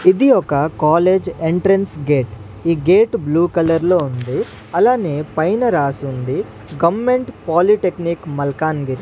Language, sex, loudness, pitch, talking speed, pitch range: Telugu, male, -17 LUFS, 165 Hz, 115 wpm, 145-190 Hz